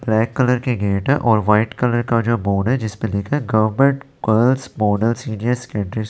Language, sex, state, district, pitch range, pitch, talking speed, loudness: Hindi, male, Chandigarh, Chandigarh, 110-125 Hz, 115 Hz, 165 wpm, -18 LUFS